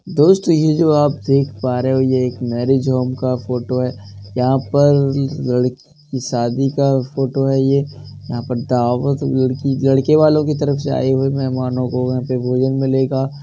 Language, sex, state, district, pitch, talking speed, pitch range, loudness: Hindi, male, Uttar Pradesh, Jalaun, 130 Hz, 180 wpm, 125-140 Hz, -17 LUFS